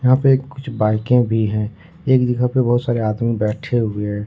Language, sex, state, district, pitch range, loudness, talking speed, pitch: Hindi, male, Jharkhand, Ranchi, 110-130 Hz, -18 LUFS, 210 wpm, 120 Hz